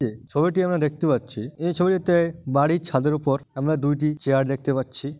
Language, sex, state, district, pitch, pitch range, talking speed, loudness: Bengali, male, West Bengal, Dakshin Dinajpur, 145 Hz, 135-165 Hz, 175 wpm, -23 LUFS